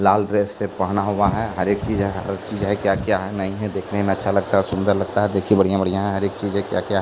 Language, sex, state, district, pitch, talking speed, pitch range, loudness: Hindi, male, Bihar, Kishanganj, 100 Hz, 305 wpm, 95-105 Hz, -21 LUFS